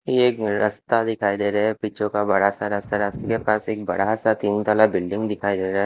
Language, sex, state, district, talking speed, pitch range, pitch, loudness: Hindi, male, Himachal Pradesh, Shimla, 185 wpm, 100-110 Hz, 105 Hz, -22 LUFS